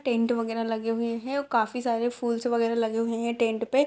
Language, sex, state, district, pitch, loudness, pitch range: Hindi, female, Bihar, Muzaffarpur, 235 Hz, -27 LUFS, 230-240 Hz